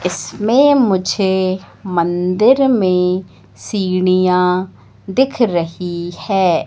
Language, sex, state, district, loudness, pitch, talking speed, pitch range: Hindi, female, Madhya Pradesh, Katni, -15 LUFS, 185 Hz, 70 wpm, 180-205 Hz